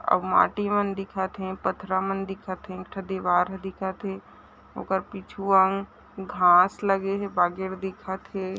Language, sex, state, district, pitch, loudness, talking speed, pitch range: Chhattisgarhi, female, Chhattisgarh, Raigarh, 190 Hz, -26 LUFS, 160 wpm, 190-195 Hz